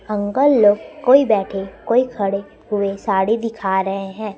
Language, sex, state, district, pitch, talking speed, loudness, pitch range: Hindi, female, Chhattisgarh, Raipur, 205 Hz, 150 wpm, -18 LUFS, 195-230 Hz